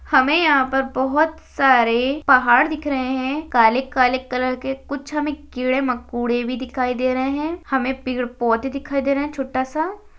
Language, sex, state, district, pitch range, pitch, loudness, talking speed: Hindi, female, Chhattisgarh, Bastar, 255-285 Hz, 265 Hz, -20 LUFS, 200 wpm